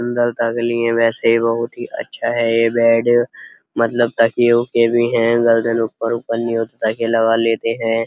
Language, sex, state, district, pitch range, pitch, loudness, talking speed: Hindi, male, Uttar Pradesh, Muzaffarnagar, 115-120 Hz, 115 Hz, -17 LUFS, 180 wpm